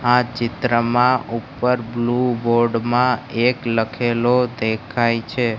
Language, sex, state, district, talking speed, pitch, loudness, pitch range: Gujarati, male, Gujarat, Gandhinagar, 105 wpm, 120 Hz, -19 LUFS, 115-125 Hz